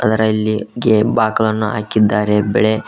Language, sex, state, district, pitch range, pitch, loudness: Kannada, male, Karnataka, Koppal, 105-110 Hz, 110 Hz, -15 LUFS